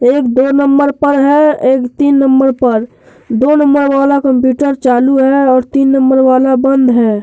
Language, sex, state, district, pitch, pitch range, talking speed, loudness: Hindi, male, Jharkhand, Deoghar, 270 Hz, 255-280 Hz, 175 wpm, -10 LUFS